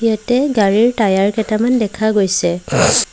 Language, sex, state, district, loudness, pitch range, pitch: Assamese, female, Assam, Sonitpur, -15 LUFS, 195-230 Hz, 215 Hz